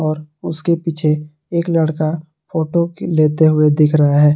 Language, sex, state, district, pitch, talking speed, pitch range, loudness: Hindi, male, Jharkhand, Garhwa, 155 Hz, 150 wpm, 150-165 Hz, -16 LUFS